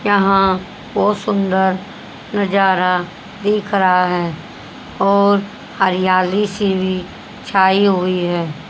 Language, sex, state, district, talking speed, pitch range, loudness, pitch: Hindi, female, Haryana, Jhajjar, 95 wpm, 185-200 Hz, -16 LUFS, 190 Hz